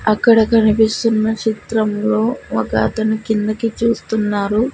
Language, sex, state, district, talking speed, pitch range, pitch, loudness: Telugu, female, Andhra Pradesh, Sri Satya Sai, 90 wpm, 215-225 Hz, 220 Hz, -16 LUFS